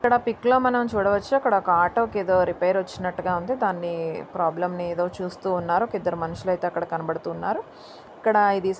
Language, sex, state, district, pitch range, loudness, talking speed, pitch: Telugu, female, Andhra Pradesh, Anantapur, 175-210 Hz, -24 LUFS, 175 wpm, 185 Hz